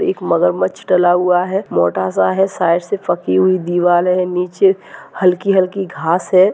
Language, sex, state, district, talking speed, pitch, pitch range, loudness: Hindi, male, Goa, North and South Goa, 165 wpm, 180 Hz, 165-190 Hz, -15 LUFS